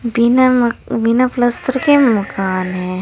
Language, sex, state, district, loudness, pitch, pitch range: Hindi, female, Uttar Pradesh, Saharanpur, -14 LUFS, 235 Hz, 195-255 Hz